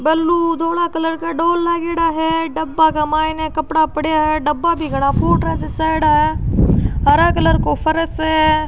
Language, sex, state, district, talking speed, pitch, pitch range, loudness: Rajasthani, female, Rajasthan, Churu, 165 wpm, 315 Hz, 310-330 Hz, -16 LUFS